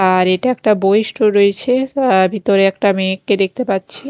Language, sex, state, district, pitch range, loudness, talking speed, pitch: Bengali, female, Chhattisgarh, Raipur, 190-250 Hz, -15 LUFS, 175 wpm, 200 Hz